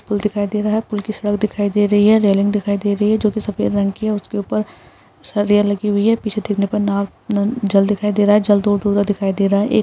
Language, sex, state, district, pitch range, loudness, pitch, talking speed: Hindi, female, Chhattisgarh, Sukma, 205-210 Hz, -17 LUFS, 205 Hz, 295 wpm